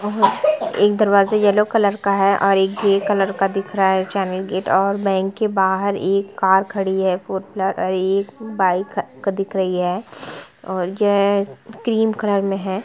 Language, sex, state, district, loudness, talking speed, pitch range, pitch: Hindi, female, Jharkhand, Sahebganj, -19 LUFS, 160 wpm, 190-205 Hz, 195 Hz